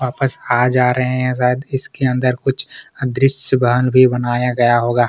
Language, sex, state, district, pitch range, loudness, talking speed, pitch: Hindi, male, Chhattisgarh, Kabirdham, 125-130 Hz, -16 LUFS, 175 wpm, 125 Hz